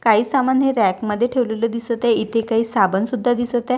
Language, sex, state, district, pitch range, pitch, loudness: Marathi, female, Maharashtra, Washim, 220-250 Hz, 235 Hz, -19 LUFS